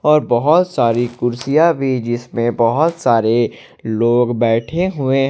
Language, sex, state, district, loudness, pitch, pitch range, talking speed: Hindi, male, Jharkhand, Ranchi, -16 LUFS, 120 Hz, 120-150 Hz, 125 wpm